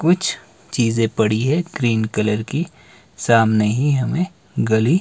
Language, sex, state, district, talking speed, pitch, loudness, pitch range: Hindi, male, Himachal Pradesh, Shimla, 130 wpm, 120 Hz, -19 LUFS, 110-160 Hz